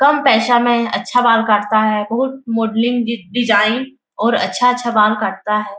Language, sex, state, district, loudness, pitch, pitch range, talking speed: Hindi, female, Bihar, Jahanabad, -15 LUFS, 230 Hz, 210-245 Hz, 155 wpm